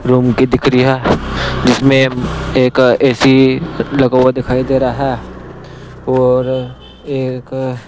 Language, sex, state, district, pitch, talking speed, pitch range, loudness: Hindi, male, Punjab, Pathankot, 130 Hz, 130 wpm, 125-130 Hz, -13 LUFS